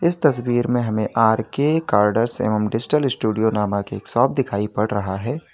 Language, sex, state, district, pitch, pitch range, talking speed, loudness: Hindi, male, Uttar Pradesh, Lalitpur, 115 Hz, 105-135 Hz, 185 wpm, -20 LUFS